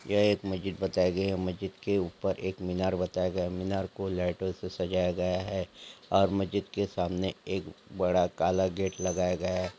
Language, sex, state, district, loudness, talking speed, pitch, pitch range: Angika, male, Bihar, Samastipur, -30 LUFS, 195 wpm, 95 Hz, 90-95 Hz